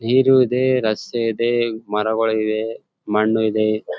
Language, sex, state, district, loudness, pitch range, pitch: Kannada, male, Karnataka, Gulbarga, -19 LUFS, 110-120 Hz, 115 Hz